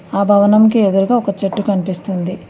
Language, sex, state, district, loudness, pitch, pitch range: Telugu, female, Telangana, Mahabubabad, -14 LUFS, 200 Hz, 195-205 Hz